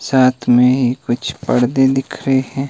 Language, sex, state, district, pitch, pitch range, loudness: Hindi, male, Himachal Pradesh, Shimla, 130 Hz, 125-135 Hz, -15 LUFS